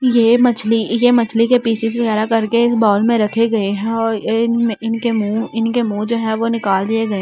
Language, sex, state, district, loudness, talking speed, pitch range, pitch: Hindi, female, Delhi, New Delhi, -16 LUFS, 215 wpm, 220-235 Hz, 225 Hz